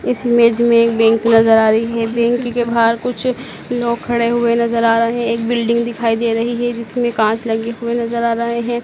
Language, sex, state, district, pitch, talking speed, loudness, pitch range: Hindi, female, Madhya Pradesh, Dhar, 235 Hz, 230 wpm, -15 LUFS, 230-240 Hz